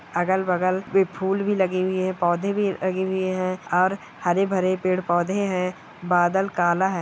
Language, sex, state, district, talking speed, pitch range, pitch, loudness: Hindi, male, Bihar, Kishanganj, 170 wpm, 180-190 Hz, 185 Hz, -23 LUFS